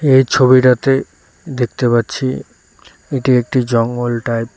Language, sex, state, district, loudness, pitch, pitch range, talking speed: Bengali, male, West Bengal, Cooch Behar, -14 LUFS, 125 Hz, 120-130 Hz, 120 wpm